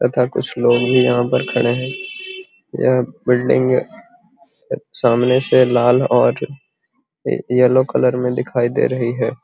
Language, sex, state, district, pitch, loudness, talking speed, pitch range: Magahi, male, Bihar, Gaya, 125 Hz, -16 LUFS, 145 wpm, 120-140 Hz